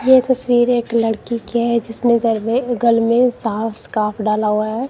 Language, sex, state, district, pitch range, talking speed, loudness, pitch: Hindi, female, Punjab, Kapurthala, 220-245 Hz, 185 wpm, -17 LUFS, 235 Hz